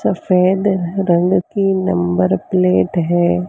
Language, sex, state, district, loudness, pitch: Hindi, female, Maharashtra, Mumbai Suburban, -15 LUFS, 175 Hz